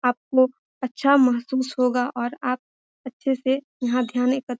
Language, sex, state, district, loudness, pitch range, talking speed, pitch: Hindi, female, Bihar, Darbhanga, -23 LUFS, 250-265 Hz, 170 wpm, 255 Hz